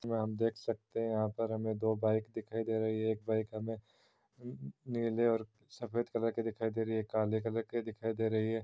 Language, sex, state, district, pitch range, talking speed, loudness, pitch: Hindi, male, Chhattisgarh, Korba, 110-115 Hz, 235 wpm, -36 LUFS, 110 Hz